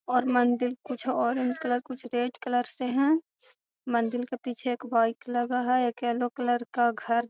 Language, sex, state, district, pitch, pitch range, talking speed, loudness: Magahi, female, Bihar, Gaya, 245 Hz, 240-255 Hz, 190 wpm, -28 LUFS